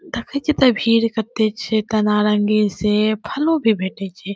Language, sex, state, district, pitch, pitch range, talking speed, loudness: Maithili, female, Bihar, Saharsa, 220 Hz, 210-235 Hz, 180 wpm, -18 LUFS